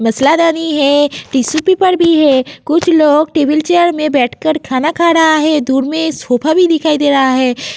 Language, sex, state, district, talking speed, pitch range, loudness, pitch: Hindi, female, Uttar Pradesh, Jyotiba Phule Nagar, 195 wpm, 280-325 Hz, -11 LUFS, 310 Hz